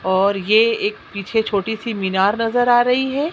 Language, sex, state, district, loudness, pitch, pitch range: Hindi, female, Chhattisgarh, Sukma, -18 LUFS, 220 Hz, 200-240 Hz